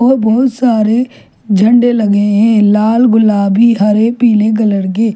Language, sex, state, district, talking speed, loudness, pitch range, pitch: Hindi, female, Chhattisgarh, Jashpur, 140 wpm, -10 LUFS, 210-235 Hz, 220 Hz